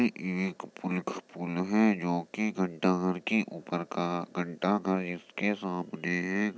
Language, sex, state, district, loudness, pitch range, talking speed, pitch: Hindi, male, Uttar Pradesh, Jyotiba Phule Nagar, -31 LUFS, 90-100 Hz, 145 wpm, 90 Hz